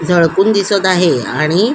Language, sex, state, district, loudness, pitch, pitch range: Marathi, female, Maharashtra, Solapur, -13 LUFS, 185 Hz, 170-200 Hz